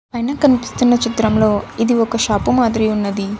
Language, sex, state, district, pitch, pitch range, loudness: Telugu, female, Andhra Pradesh, Sri Satya Sai, 230 Hz, 215-240 Hz, -16 LUFS